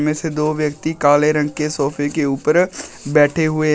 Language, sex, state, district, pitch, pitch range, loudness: Hindi, male, Uttar Pradesh, Shamli, 150 Hz, 145-155 Hz, -17 LUFS